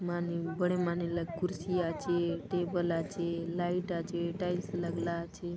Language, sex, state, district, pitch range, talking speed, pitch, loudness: Halbi, female, Chhattisgarh, Bastar, 170-180 Hz, 130 wpm, 175 Hz, -34 LUFS